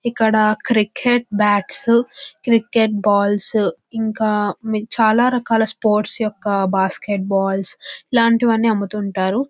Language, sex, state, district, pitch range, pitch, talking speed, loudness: Telugu, female, Andhra Pradesh, Visakhapatnam, 205-230 Hz, 220 Hz, 95 wpm, -17 LUFS